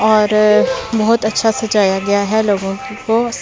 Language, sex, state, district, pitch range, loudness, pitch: Hindi, female, Delhi, New Delhi, 205-225 Hz, -15 LUFS, 215 Hz